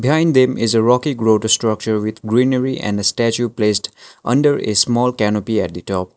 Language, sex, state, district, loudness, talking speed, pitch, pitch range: English, male, Sikkim, Gangtok, -16 LUFS, 175 wpm, 115 Hz, 105-125 Hz